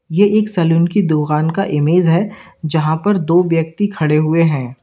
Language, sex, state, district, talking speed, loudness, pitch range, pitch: Hindi, male, Uttar Pradesh, Lalitpur, 185 wpm, -15 LUFS, 155-195 Hz, 165 Hz